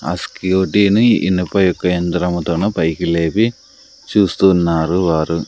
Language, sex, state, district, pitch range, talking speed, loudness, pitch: Telugu, male, Andhra Pradesh, Sri Satya Sai, 85-100 Hz, 110 wpm, -15 LUFS, 90 Hz